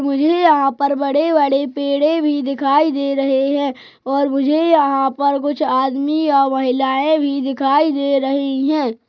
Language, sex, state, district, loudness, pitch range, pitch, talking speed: Hindi, male, Chhattisgarh, Rajnandgaon, -16 LUFS, 275-295 Hz, 280 Hz, 150 wpm